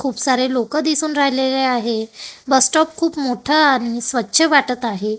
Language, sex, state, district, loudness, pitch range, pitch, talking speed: Marathi, female, Maharashtra, Gondia, -17 LUFS, 235-290 Hz, 265 Hz, 160 wpm